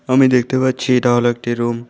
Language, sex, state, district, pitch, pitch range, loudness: Bengali, female, West Bengal, Alipurduar, 125 Hz, 120-130 Hz, -16 LUFS